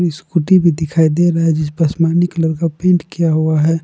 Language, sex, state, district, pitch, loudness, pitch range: Hindi, male, Jharkhand, Palamu, 165 Hz, -15 LUFS, 160-170 Hz